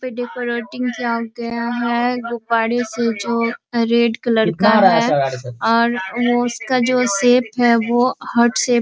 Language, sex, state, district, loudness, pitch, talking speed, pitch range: Hindi, female, Bihar, Araria, -17 LUFS, 235 Hz, 145 wpm, 230-245 Hz